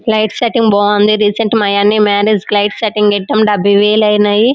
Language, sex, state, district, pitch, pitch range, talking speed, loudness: Telugu, female, Andhra Pradesh, Srikakulam, 210 Hz, 205-215 Hz, 160 wpm, -11 LUFS